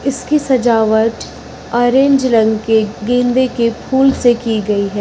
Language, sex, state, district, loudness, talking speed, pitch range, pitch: Hindi, female, Uttar Pradesh, Lucknow, -14 LUFS, 145 wpm, 220-260 Hz, 240 Hz